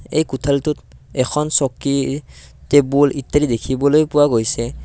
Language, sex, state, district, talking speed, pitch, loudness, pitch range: Assamese, male, Assam, Kamrup Metropolitan, 110 wpm, 140 Hz, -17 LUFS, 130-145 Hz